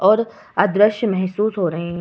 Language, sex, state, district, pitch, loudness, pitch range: Hindi, female, Uttar Pradesh, Varanasi, 205 Hz, -19 LUFS, 185-215 Hz